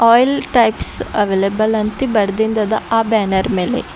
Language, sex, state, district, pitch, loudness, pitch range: Kannada, female, Karnataka, Bidar, 220 Hz, -16 LUFS, 205-230 Hz